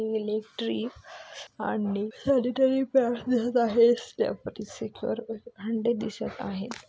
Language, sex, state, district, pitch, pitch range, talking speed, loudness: Marathi, female, Maharashtra, Solapur, 230 Hz, 215-240 Hz, 80 wpm, -28 LUFS